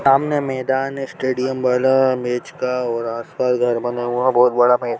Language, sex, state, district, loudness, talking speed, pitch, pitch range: Hindi, male, Chhattisgarh, Sarguja, -19 LUFS, 155 wpm, 125 Hz, 120-130 Hz